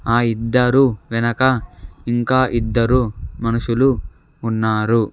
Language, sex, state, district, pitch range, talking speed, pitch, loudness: Telugu, male, Andhra Pradesh, Sri Satya Sai, 110-125 Hz, 80 wpm, 115 Hz, -18 LUFS